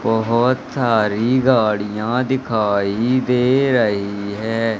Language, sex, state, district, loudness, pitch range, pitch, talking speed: Hindi, male, Madhya Pradesh, Katni, -18 LUFS, 105-125 Hz, 115 Hz, 85 wpm